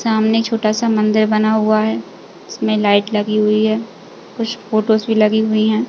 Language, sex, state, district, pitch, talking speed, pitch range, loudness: Hindi, female, Uttar Pradesh, Jalaun, 215 Hz, 175 wpm, 215-220 Hz, -16 LUFS